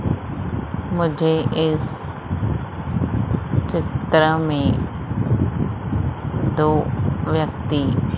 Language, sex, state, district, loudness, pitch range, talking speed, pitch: Hindi, female, Madhya Pradesh, Umaria, -21 LUFS, 130-160 Hz, 45 wpm, 155 Hz